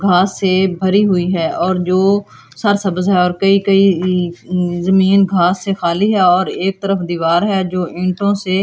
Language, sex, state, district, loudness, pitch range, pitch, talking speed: Hindi, female, Delhi, New Delhi, -15 LUFS, 180-195 Hz, 185 Hz, 160 wpm